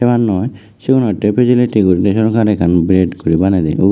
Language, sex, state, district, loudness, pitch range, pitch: Chakma, male, Tripura, West Tripura, -13 LUFS, 95-120 Hz, 105 Hz